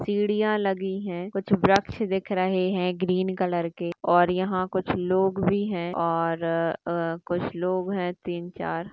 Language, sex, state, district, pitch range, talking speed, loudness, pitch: Hindi, female, Maharashtra, Chandrapur, 175-195 Hz, 175 wpm, -26 LUFS, 185 Hz